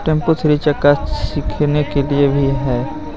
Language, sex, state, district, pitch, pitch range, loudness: Hindi, male, Jharkhand, Garhwa, 145 Hz, 140-150 Hz, -16 LUFS